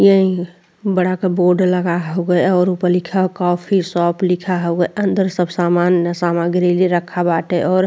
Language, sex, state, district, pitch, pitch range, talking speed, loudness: Bhojpuri, female, Uttar Pradesh, Deoria, 180 Hz, 175-185 Hz, 175 wpm, -16 LUFS